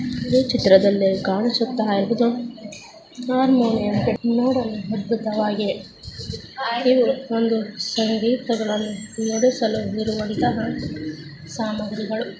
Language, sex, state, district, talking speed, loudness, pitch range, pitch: Kannada, female, Karnataka, Chamarajanagar, 65 wpm, -21 LUFS, 210-240 Hz, 220 Hz